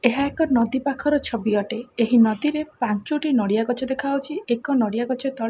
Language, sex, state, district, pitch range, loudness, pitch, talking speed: Odia, female, Odisha, Khordha, 230-280 Hz, -22 LUFS, 255 Hz, 175 wpm